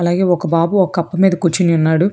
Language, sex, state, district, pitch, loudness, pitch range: Telugu, female, Telangana, Hyderabad, 175 Hz, -15 LUFS, 170-185 Hz